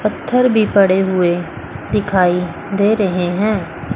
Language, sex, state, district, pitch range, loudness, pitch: Hindi, female, Chandigarh, Chandigarh, 175-205 Hz, -16 LUFS, 190 Hz